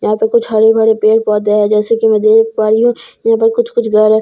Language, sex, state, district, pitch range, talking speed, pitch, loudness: Hindi, female, Bihar, Katihar, 215-225 Hz, 340 wpm, 220 Hz, -11 LUFS